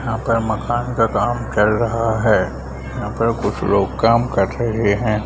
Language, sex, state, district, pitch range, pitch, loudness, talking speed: Hindi, male, Bihar, Madhepura, 105-115 Hz, 115 Hz, -18 LUFS, 195 wpm